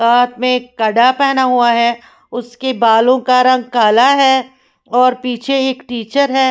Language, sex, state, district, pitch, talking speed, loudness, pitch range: Hindi, female, Punjab, Fazilka, 250 Hz, 175 wpm, -13 LUFS, 235-260 Hz